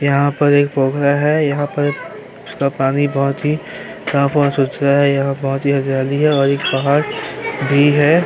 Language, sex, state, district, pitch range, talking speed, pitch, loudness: Hindi, male, Uttar Pradesh, Hamirpur, 140-145 Hz, 180 wpm, 140 Hz, -16 LUFS